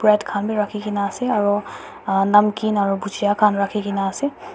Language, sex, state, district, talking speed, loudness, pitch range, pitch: Nagamese, female, Nagaland, Dimapur, 200 wpm, -20 LUFS, 200-210 Hz, 210 Hz